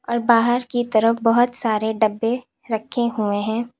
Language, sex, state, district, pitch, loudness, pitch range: Hindi, female, Uttar Pradesh, Lalitpur, 230 Hz, -20 LUFS, 220-240 Hz